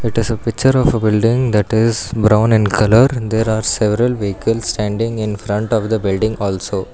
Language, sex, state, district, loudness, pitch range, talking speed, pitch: English, male, Karnataka, Bangalore, -16 LUFS, 105-115 Hz, 200 wpm, 110 Hz